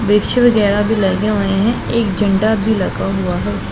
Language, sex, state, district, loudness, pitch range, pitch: Hindi, female, Punjab, Pathankot, -15 LUFS, 195-220 Hz, 205 Hz